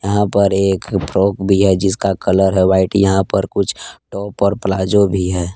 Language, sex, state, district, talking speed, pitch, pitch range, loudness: Hindi, male, Jharkhand, Palamu, 195 wpm, 95 Hz, 95-100 Hz, -15 LUFS